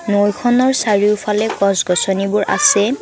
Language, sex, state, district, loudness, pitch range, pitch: Assamese, female, Assam, Kamrup Metropolitan, -15 LUFS, 200-225 Hz, 205 Hz